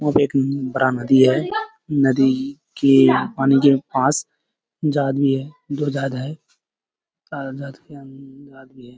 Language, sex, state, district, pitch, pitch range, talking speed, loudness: Hindi, male, Bihar, Kishanganj, 135 Hz, 135-140 Hz, 125 wpm, -19 LUFS